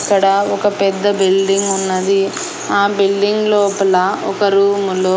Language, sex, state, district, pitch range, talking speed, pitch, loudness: Telugu, female, Andhra Pradesh, Annamaya, 195-200 Hz, 130 wpm, 195 Hz, -15 LUFS